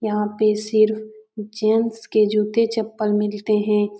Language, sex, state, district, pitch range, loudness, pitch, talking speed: Hindi, female, Bihar, Jamui, 210-220 Hz, -20 LUFS, 215 Hz, 135 wpm